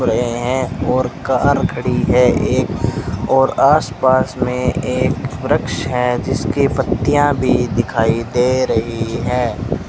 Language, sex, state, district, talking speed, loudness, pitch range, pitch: Hindi, male, Rajasthan, Bikaner, 120 wpm, -16 LUFS, 115-130 Hz, 125 Hz